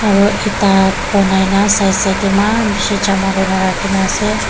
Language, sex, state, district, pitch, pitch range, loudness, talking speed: Nagamese, female, Nagaland, Kohima, 195 Hz, 190-205 Hz, -13 LUFS, 175 wpm